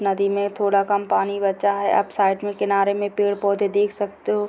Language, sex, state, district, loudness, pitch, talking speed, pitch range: Hindi, female, Bihar, Purnia, -21 LUFS, 200 Hz, 215 wpm, 200-205 Hz